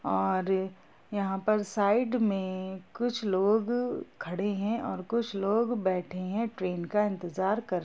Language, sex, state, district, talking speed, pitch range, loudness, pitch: Hindi, female, Jharkhand, Jamtara, 145 wpm, 185-220 Hz, -30 LUFS, 195 Hz